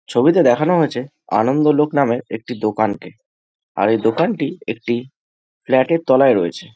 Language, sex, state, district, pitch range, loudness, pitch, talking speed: Bengali, male, West Bengal, Jhargram, 110-145 Hz, -17 LUFS, 125 Hz, 135 wpm